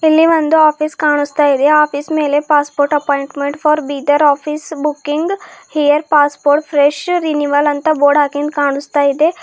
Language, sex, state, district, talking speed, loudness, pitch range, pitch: Kannada, female, Karnataka, Bidar, 140 wpm, -14 LUFS, 285-310 Hz, 295 Hz